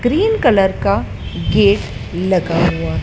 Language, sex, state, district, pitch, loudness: Hindi, female, Madhya Pradesh, Dhar, 170 Hz, -16 LUFS